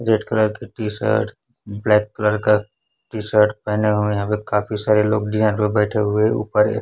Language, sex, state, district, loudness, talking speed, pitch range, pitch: Hindi, male, Chhattisgarh, Raipur, -19 LUFS, 200 wpm, 105-110 Hz, 105 Hz